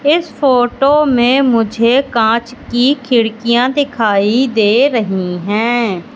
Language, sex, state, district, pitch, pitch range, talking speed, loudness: Hindi, female, Madhya Pradesh, Katni, 240 Hz, 225-265 Hz, 105 wpm, -13 LUFS